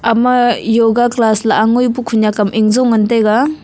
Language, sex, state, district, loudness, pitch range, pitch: Wancho, female, Arunachal Pradesh, Longding, -12 LUFS, 220-240 Hz, 230 Hz